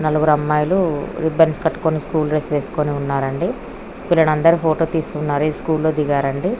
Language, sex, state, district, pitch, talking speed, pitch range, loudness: Telugu, female, Andhra Pradesh, Krishna, 155 Hz, 145 wpm, 150-160 Hz, -18 LUFS